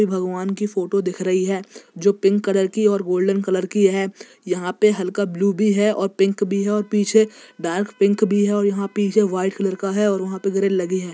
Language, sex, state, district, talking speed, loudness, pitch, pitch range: Hindi, male, Jharkhand, Jamtara, 240 wpm, -20 LUFS, 195 Hz, 190-205 Hz